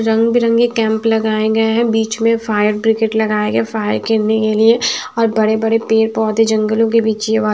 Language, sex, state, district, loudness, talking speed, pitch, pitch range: Hindi, female, Maharashtra, Washim, -15 LUFS, 185 wpm, 220 Hz, 220-225 Hz